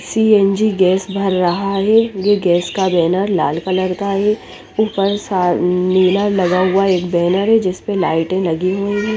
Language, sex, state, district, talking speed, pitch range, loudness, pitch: Hindi, female, Chandigarh, Chandigarh, 170 wpm, 180-200 Hz, -15 LUFS, 190 Hz